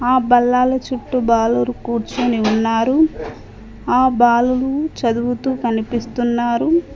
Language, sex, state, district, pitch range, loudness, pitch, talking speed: Telugu, female, Telangana, Mahabubabad, 225-255 Hz, -17 LUFS, 240 Hz, 85 wpm